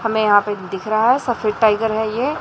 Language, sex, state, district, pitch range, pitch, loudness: Hindi, male, Chhattisgarh, Raipur, 210-230 Hz, 220 Hz, -18 LUFS